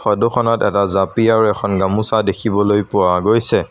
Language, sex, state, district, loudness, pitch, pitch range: Assamese, male, Assam, Sonitpur, -15 LUFS, 105 Hz, 100-115 Hz